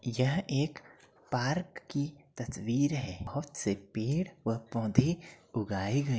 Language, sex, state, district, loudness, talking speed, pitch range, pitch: Hindi, male, Uttar Pradesh, Jyotiba Phule Nagar, -33 LUFS, 155 wpm, 115-145 Hz, 135 Hz